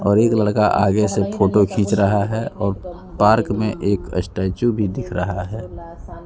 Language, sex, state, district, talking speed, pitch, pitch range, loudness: Hindi, male, Bihar, West Champaran, 170 wpm, 100 Hz, 95-105 Hz, -19 LUFS